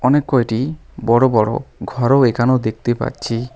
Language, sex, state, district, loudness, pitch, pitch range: Bengali, male, West Bengal, Alipurduar, -17 LUFS, 120 Hz, 115-130 Hz